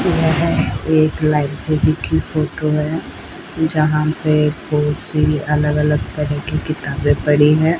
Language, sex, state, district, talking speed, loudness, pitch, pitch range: Hindi, female, Rajasthan, Bikaner, 130 wpm, -17 LUFS, 150 Hz, 150-155 Hz